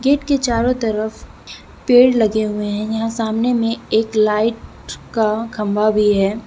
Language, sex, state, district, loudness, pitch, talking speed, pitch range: Hindi, female, Jharkhand, Deoghar, -17 LUFS, 220 Hz, 160 wpm, 215-235 Hz